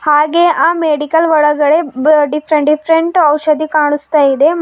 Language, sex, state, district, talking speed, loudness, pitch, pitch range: Kannada, female, Karnataka, Bidar, 145 wpm, -11 LUFS, 305 Hz, 295-325 Hz